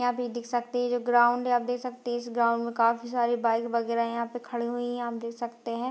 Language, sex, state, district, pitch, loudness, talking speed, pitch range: Hindi, female, Bihar, Darbhanga, 240 Hz, -28 LUFS, 285 wpm, 235-245 Hz